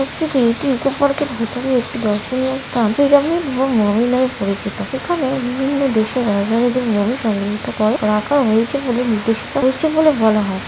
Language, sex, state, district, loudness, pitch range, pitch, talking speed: Bengali, male, West Bengal, Kolkata, -17 LUFS, 220-270 Hz, 245 Hz, 170 wpm